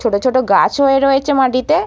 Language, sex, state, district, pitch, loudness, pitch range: Bengali, female, West Bengal, Purulia, 270 Hz, -13 LUFS, 255-275 Hz